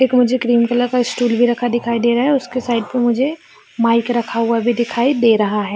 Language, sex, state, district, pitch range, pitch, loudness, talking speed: Hindi, female, Bihar, Jamui, 235-250 Hz, 240 Hz, -16 LUFS, 270 wpm